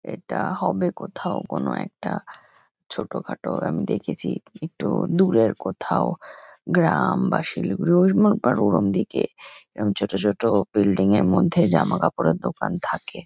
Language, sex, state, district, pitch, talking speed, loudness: Bengali, female, West Bengal, Kolkata, 105 Hz, 125 wpm, -22 LUFS